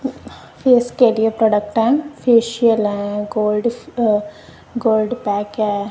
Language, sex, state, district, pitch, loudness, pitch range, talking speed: Hindi, female, Punjab, Kapurthala, 225 Hz, -17 LUFS, 210-240 Hz, 120 wpm